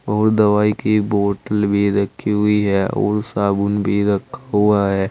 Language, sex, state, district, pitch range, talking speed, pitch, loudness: Hindi, male, Uttar Pradesh, Saharanpur, 100-105 Hz, 165 wpm, 105 Hz, -17 LUFS